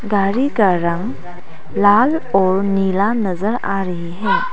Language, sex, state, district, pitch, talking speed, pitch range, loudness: Hindi, female, Arunachal Pradesh, Papum Pare, 195 Hz, 130 wpm, 180-225 Hz, -17 LUFS